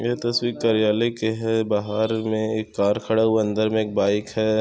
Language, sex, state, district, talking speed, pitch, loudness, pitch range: Hindi, male, Chhattisgarh, Korba, 220 wpm, 110 Hz, -22 LUFS, 110-115 Hz